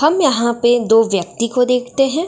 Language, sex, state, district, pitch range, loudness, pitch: Hindi, female, Bihar, Darbhanga, 230-270 Hz, -15 LUFS, 240 Hz